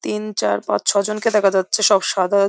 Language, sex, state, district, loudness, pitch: Bengali, female, West Bengal, Jhargram, -18 LUFS, 195 Hz